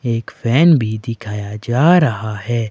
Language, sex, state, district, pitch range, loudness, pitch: Hindi, male, Himachal Pradesh, Shimla, 110-130 Hz, -16 LUFS, 115 Hz